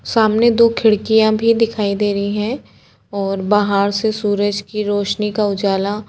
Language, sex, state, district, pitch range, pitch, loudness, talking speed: Hindi, female, Uttar Pradesh, Etah, 200-220 Hz, 210 Hz, -16 LUFS, 150 wpm